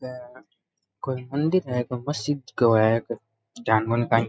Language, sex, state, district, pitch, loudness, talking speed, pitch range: Rajasthani, male, Rajasthan, Nagaur, 125 Hz, -24 LUFS, 140 wpm, 115-130 Hz